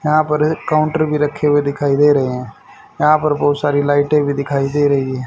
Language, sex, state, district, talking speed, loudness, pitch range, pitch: Hindi, male, Haryana, Rohtak, 240 wpm, -15 LUFS, 140-150 Hz, 145 Hz